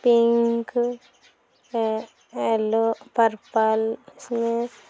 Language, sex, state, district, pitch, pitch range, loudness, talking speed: Hindi, male, Bihar, Sitamarhi, 230 Hz, 225-240 Hz, -23 LUFS, 60 wpm